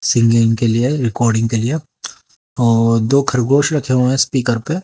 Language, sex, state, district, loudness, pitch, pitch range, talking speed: Hindi, female, Haryana, Jhajjar, -15 LUFS, 120 Hz, 115-135 Hz, 160 wpm